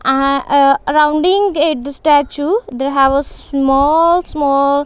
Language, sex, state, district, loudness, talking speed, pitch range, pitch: English, female, Punjab, Kapurthala, -13 LUFS, 135 wpm, 275-310 Hz, 285 Hz